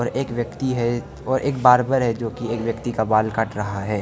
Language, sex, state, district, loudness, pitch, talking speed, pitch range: Hindi, male, Arunachal Pradesh, Lower Dibang Valley, -21 LUFS, 120 Hz, 255 wpm, 110-125 Hz